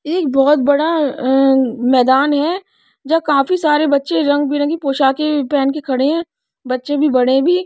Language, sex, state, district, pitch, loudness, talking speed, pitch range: Hindi, female, Odisha, Nuapada, 290 Hz, -15 LUFS, 165 wpm, 270-315 Hz